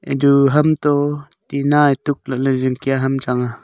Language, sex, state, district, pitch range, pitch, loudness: Wancho, male, Arunachal Pradesh, Longding, 135-145 Hz, 140 Hz, -17 LUFS